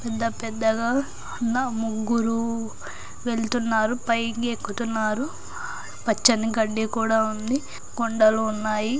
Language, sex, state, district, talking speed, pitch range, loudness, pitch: Telugu, female, Andhra Pradesh, Anantapur, 85 wpm, 220-235 Hz, -24 LUFS, 230 Hz